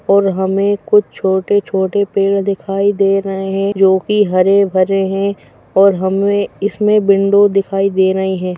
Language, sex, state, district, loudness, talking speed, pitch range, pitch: Hindi, female, Uttar Pradesh, Etah, -14 LUFS, 160 wpm, 190-200 Hz, 195 Hz